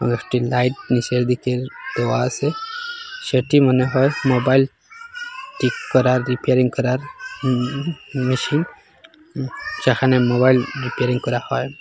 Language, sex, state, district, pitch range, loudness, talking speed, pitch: Bengali, male, Assam, Hailakandi, 125-150 Hz, -20 LUFS, 105 wpm, 130 Hz